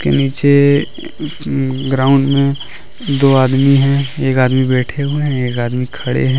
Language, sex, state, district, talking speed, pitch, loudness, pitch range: Hindi, male, Jharkhand, Deoghar, 160 wpm, 135 Hz, -14 LUFS, 130-140 Hz